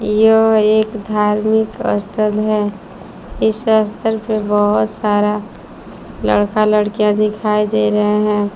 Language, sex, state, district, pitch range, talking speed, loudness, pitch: Hindi, female, Jharkhand, Palamu, 210-215 Hz, 110 wpm, -15 LUFS, 210 Hz